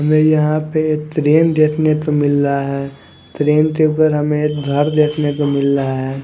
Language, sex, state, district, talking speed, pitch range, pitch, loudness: Hindi, male, Haryana, Charkhi Dadri, 175 wpm, 140-155 Hz, 150 Hz, -15 LUFS